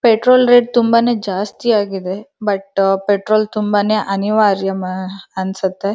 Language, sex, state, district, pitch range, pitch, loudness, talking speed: Kannada, female, Karnataka, Dharwad, 195-220 Hz, 205 Hz, -16 LUFS, 110 wpm